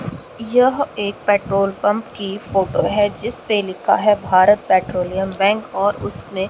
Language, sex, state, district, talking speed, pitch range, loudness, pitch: Hindi, female, Haryana, Rohtak, 140 wpm, 195-210 Hz, -18 LUFS, 200 Hz